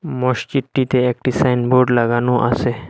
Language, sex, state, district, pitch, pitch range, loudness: Bengali, male, Assam, Hailakandi, 125 Hz, 120-130 Hz, -17 LUFS